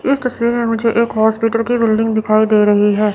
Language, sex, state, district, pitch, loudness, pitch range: Hindi, female, Chandigarh, Chandigarh, 225 Hz, -14 LUFS, 215-235 Hz